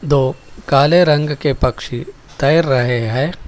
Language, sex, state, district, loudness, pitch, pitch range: Hindi, male, Telangana, Hyderabad, -15 LUFS, 140 Hz, 130-150 Hz